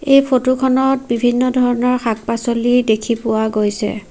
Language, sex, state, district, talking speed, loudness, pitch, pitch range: Assamese, female, Assam, Sonitpur, 130 wpm, -16 LUFS, 240 Hz, 225-255 Hz